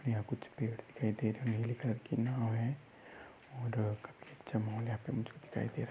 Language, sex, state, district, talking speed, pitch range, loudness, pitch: Hindi, male, Maharashtra, Sindhudurg, 225 wpm, 110-130 Hz, -38 LUFS, 115 Hz